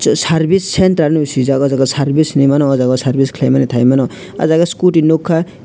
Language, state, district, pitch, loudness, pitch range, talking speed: Kokborok, Tripura, West Tripura, 145 Hz, -13 LUFS, 135-160 Hz, 180 wpm